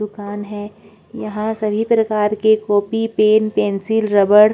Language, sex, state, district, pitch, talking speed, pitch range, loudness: Hindi, female, Chhattisgarh, Korba, 210 Hz, 145 wpm, 205-220 Hz, -17 LUFS